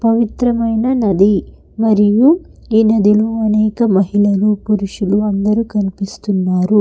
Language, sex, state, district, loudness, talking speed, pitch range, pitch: Telugu, female, Telangana, Hyderabad, -14 LUFS, 80 wpm, 200-225 Hz, 210 Hz